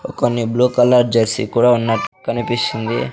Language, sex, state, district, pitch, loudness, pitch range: Telugu, male, Andhra Pradesh, Sri Satya Sai, 120 Hz, -16 LUFS, 115-125 Hz